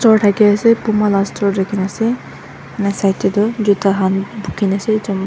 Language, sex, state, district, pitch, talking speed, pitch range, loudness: Nagamese, female, Nagaland, Dimapur, 205 Hz, 185 wpm, 195-215 Hz, -16 LUFS